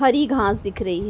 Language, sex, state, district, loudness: Hindi, female, Uttar Pradesh, Ghazipur, -21 LUFS